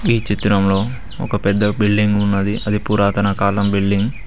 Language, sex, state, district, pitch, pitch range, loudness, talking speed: Telugu, male, Telangana, Mahabubabad, 100 Hz, 100-105 Hz, -17 LUFS, 155 wpm